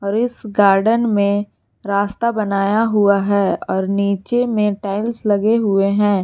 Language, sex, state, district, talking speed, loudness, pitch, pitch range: Hindi, female, Jharkhand, Garhwa, 135 wpm, -17 LUFS, 205 Hz, 200-220 Hz